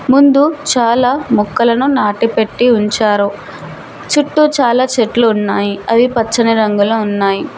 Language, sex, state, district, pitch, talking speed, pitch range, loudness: Telugu, female, Telangana, Mahabubabad, 235 Hz, 105 wpm, 210-260 Hz, -12 LUFS